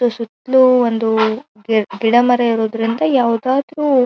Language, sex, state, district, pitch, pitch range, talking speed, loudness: Kannada, female, Karnataka, Dharwad, 235 Hz, 225-255 Hz, 105 wpm, -15 LUFS